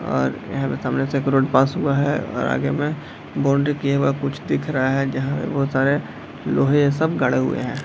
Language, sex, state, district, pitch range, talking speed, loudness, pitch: Hindi, male, Bihar, Darbhanga, 135-140 Hz, 230 wpm, -21 LUFS, 140 Hz